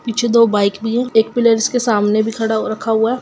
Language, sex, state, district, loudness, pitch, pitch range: Hindi, female, Bihar, Sitamarhi, -15 LUFS, 225 Hz, 220-235 Hz